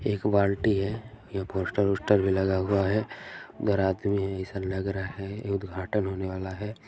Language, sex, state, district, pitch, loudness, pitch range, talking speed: Hindi, male, Chhattisgarh, Balrampur, 100 Hz, -28 LUFS, 95-105 Hz, 185 wpm